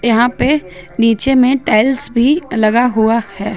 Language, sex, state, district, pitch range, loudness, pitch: Hindi, female, Jharkhand, Ranchi, 220-265 Hz, -13 LUFS, 235 Hz